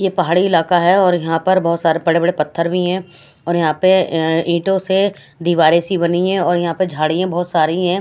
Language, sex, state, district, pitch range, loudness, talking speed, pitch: Hindi, female, Haryana, Rohtak, 165-185 Hz, -16 LUFS, 225 wpm, 175 Hz